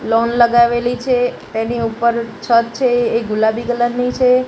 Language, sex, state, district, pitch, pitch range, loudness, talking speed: Gujarati, female, Gujarat, Gandhinagar, 235 Hz, 230-245 Hz, -16 LUFS, 160 wpm